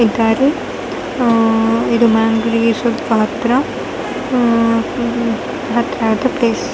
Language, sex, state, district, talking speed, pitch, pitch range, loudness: Kannada, female, Karnataka, Dakshina Kannada, 45 wpm, 230 Hz, 225-240 Hz, -15 LUFS